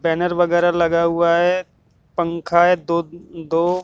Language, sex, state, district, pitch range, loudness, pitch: Hindi, male, Haryana, Jhajjar, 170-175 Hz, -18 LUFS, 170 Hz